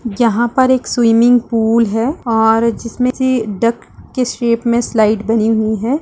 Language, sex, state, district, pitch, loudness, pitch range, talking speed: Hindi, female, Uttar Pradesh, Etah, 235 Hz, -14 LUFS, 225-245 Hz, 160 wpm